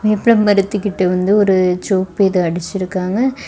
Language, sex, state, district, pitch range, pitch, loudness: Tamil, female, Tamil Nadu, Kanyakumari, 185-210 Hz, 195 Hz, -15 LUFS